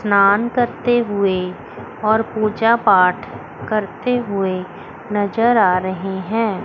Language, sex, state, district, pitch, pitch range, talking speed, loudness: Hindi, female, Chandigarh, Chandigarh, 210 Hz, 190-230 Hz, 110 wpm, -18 LUFS